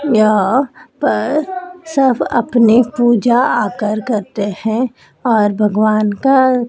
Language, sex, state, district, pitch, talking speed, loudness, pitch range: Hindi, male, Madhya Pradesh, Dhar, 240 Hz, 100 wpm, -14 LUFS, 215-265 Hz